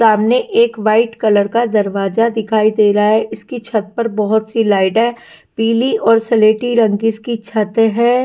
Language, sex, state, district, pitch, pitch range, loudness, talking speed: Hindi, female, Punjab, Kapurthala, 225 Hz, 215-235 Hz, -14 LUFS, 180 wpm